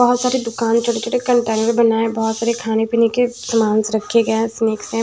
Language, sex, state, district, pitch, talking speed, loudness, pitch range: Hindi, female, Maharashtra, Washim, 230 Hz, 200 wpm, -17 LUFS, 225-235 Hz